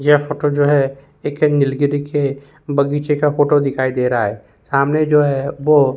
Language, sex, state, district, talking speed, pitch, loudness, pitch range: Hindi, male, Uttar Pradesh, Jyotiba Phule Nagar, 200 wpm, 145 Hz, -17 LUFS, 140-150 Hz